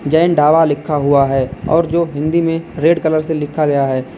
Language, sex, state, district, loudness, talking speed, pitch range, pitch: Hindi, male, Uttar Pradesh, Lalitpur, -15 LUFS, 215 wpm, 145-165 Hz, 155 Hz